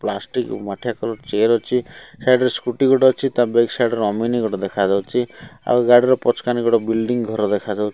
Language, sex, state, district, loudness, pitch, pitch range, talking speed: Odia, male, Odisha, Malkangiri, -19 LUFS, 120 Hz, 110-125 Hz, 210 wpm